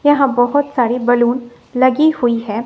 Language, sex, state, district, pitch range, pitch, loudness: Hindi, female, Bihar, West Champaran, 240-275 Hz, 245 Hz, -15 LUFS